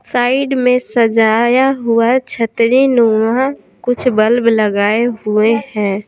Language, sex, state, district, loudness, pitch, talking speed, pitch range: Hindi, female, Bihar, Patna, -13 LUFS, 235 Hz, 110 wpm, 220-250 Hz